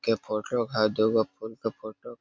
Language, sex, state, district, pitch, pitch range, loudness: Hindi, male, Jharkhand, Sahebganj, 110 Hz, 110-115 Hz, -28 LUFS